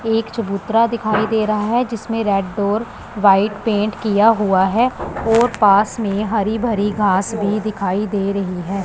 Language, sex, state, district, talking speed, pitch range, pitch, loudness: Hindi, female, Punjab, Pathankot, 170 wpm, 200-225 Hz, 215 Hz, -17 LUFS